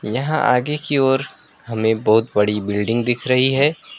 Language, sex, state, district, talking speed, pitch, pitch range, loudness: Hindi, male, West Bengal, Alipurduar, 165 wpm, 125 Hz, 110-135 Hz, -18 LUFS